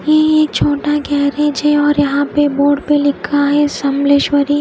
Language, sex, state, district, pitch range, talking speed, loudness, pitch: Hindi, female, Odisha, Khordha, 285-295 Hz, 170 wpm, -14 LUFS, 290 Hz